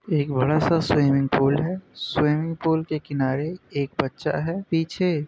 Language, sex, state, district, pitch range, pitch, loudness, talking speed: Hindi, male, Uttar Pradesh, Budaun, 140-165 Hz, 155 Hz, -23 LUFS, 160 wpm